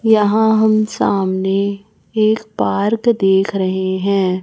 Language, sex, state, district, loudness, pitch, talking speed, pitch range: Hindi, male, Chhattisgarh, Raipur, -16 LUFS, 200 Hz, 110 wpm, 190-220 Hz